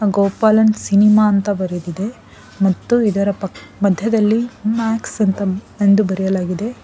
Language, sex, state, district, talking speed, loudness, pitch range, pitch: Kannada, female, Karnataka, Bangalore, 105 wpm, -17 LUFS, 195-220 Hz, 205 Hz